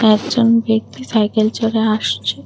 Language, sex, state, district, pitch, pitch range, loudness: Bengali, female, Tripura, West Tripura, 220 Hz, 215-230 Hz, -16 LUFS